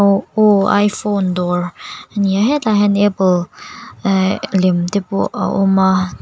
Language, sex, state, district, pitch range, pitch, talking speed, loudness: Mizo, female, Mizoram, Aizawl, 185-205 Hz, 195 Hz, 165 wpm, -15 LUFS